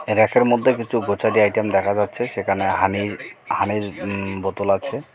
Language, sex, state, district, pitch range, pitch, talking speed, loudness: Bengali, male, West Bengal, Cooch Behar, 100-110 Hz, 105 Hz, 175 wpm, -20 LUFS